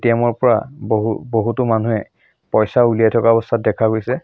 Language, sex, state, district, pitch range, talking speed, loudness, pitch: Assamese, male, Assam, Sonitpur, 110-120 Hz, 140 wpm, -17 LUFS, 115 Hz